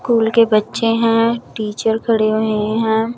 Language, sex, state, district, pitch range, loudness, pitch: Hindi, female, Chandigarh, Chandigarh, 215-230 Hz, -16 LUFS, 225 Hz